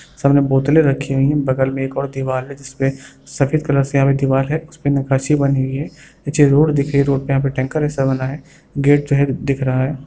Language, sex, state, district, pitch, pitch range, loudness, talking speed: Hindi, female, Bihar, Darbhanga, 140 Hz, 135-145 Hz, -17 LUFS, 245 wpm